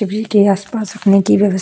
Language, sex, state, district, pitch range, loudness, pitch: Hindi, female, Goa, North and South Goa, 195-215 Hz, -14 LUFS, 205 Hz